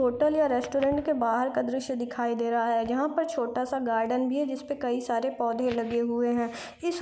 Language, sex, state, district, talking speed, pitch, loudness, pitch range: Hindi, female, Bihar, East Champaran, 220 wpm, 250 Hz, -28 LUFS, 235-275 Hz